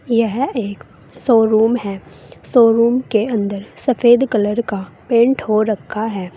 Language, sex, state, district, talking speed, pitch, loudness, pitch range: Hindi, female, Uttar Pradesh, Saharanpur, 130 wpm, 225 Hz, -16 LUFS, 210-240 Hz